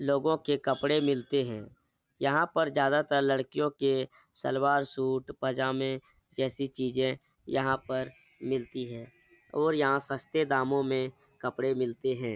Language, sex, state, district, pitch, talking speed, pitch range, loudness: Hindi, male, Bihar, Jahanabad, 135 Hz, 120 wpm, 130-140 Hz, -30 LUFS